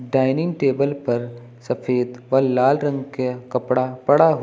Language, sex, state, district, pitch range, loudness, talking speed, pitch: Hindi, male, Uttar Pradesh, Lucknow, 125-135 Hz, -21 LUFS, 150 wpm, 130 Hz